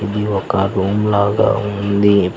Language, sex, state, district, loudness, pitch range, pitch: Telugu, male, Telangana, Hyderabad, -16 LUFS, 100-105 Hz, 100 Hz